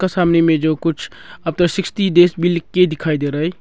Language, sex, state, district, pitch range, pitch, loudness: Hindi, male, Arunachal Pradesh, Longding, 160-180 Hz, 170 Hz, -16 LUFS